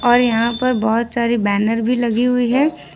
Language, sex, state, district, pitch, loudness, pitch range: Hindi, female, Jharkhand, Ranchi, 240 Hz, -17 LUFS, 225-245 Hz